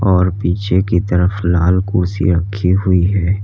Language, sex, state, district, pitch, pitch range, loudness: Hindi, male, Uttar Pradesh, Lalitpur, 90 Hz, 90-95 Hz, -15 LUFS